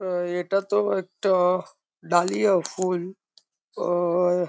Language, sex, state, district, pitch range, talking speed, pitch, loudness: Bengali, female, West Bengal, Jhargram, 175-190 Hz, 105 wpm, 180 Hz, -24 LUFS